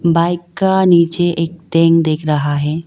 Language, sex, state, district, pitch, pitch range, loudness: Hindi, female, Arunachal Pradesh, Lower Dibang Valley, 165 Hz, 160-175 Hz, -14 LUFS